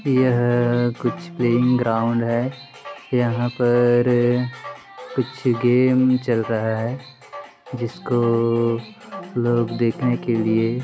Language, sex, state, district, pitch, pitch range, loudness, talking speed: Chhattisgarhi, male, Chhattisgarh, Bilaspur, 120 Hz, 115-125 Hz, -20 LUFS, 95 wpm